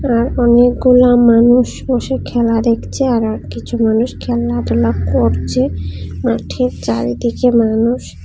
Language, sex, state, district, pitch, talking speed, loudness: Bengali, female, Tripura, West Tripura, 225 Hz, 100 wpm, -14 LUFS